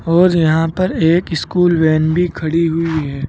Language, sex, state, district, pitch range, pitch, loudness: Hindi, male, Uttar Pradesh, Saharanpur, 160-175 Hz, 165 Hz, -15 LUFS